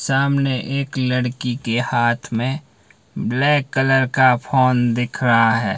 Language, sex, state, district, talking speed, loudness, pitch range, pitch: Hindi, male, Himachal Pradesh, Shimla, 135 wpm, -18 LUFS, 120-135 Hz, 125 Hz